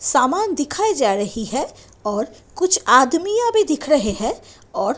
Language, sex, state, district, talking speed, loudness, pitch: Hindi, female, Delhi, New Delhi, 155 wpm, -19 LUFS, 300 Hz